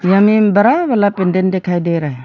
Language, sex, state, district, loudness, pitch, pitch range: Hindi, female, Arunachal Pradesh, Lower Dibang Valley, -13 LUFS, 190 Hz, 180-205 Hz